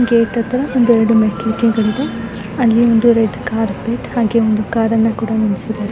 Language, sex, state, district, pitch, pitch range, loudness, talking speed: Kannada, female, Karnataka, Raichur, 225 Hz, 220-235 Hz, -15 LUFS, 150 wpm